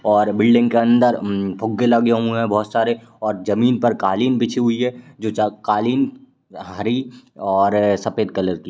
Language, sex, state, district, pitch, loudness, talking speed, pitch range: Hindi, male, Uttar Pradesh, Ghazipur, 115 Hz, -18 LUFS, 185 wpm, 105-120 Hz